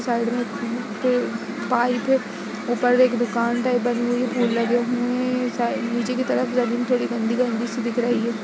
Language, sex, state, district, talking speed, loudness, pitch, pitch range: Hindi, female, Uttar Pradesh, Budaun, 205 wpm, -22 LUFS, 240 Hz, 235-250 Hz